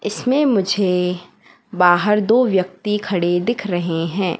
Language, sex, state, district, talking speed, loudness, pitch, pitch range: Hindi, female, Madhya Pradesh, Katni, 125 wpm, -18 LUFS, 190 Hz, 180-210 Hz